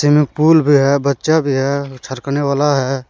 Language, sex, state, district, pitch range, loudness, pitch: Hindi, male, Jharkhand, Deoghar, 135-150 Hz, -15 LUFS, 140 Hz